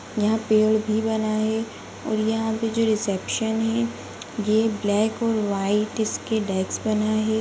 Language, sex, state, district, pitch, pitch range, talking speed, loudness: Hindi, female, Chhattisgarh, Bastar, 220 Hz, 215-225 Hz, 155 wpm, -23 LUFS